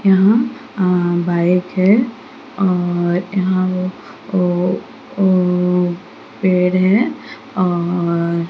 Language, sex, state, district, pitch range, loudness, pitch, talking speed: Hindi, female, Odisha, Sambalpur, 175-200 Hz, -17 LUFS, 185 Hz, 85 wpm